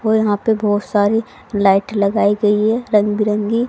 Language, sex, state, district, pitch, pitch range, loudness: Hindi, female, Haryana, Rohtak, 210 Hz, 205-220 Hz, -16 LUFS